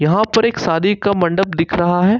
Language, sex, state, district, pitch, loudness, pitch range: Hindi, male, Jharkhand, Ranchi, 190 Hz, -16 LUFS, 170-210 Hz